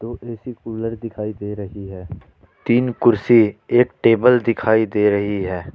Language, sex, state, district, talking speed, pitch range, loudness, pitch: Hindi, male, Jharkhand, Ranchi, 145 wpm, 100-115 Hz, -18 LUFS, 110 Hz